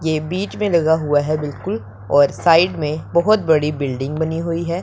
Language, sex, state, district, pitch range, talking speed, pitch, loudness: Hindi, male, Punjab, Pathankot, 145-170 Hz, 200 wpm, 160 Hz, -18 LUFS